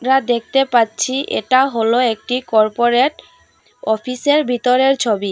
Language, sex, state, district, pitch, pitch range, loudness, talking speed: Bengali, female, Assam, Hailakandi, 250 Hz, 225-265 Hz, -16 LUFS, 110 wpm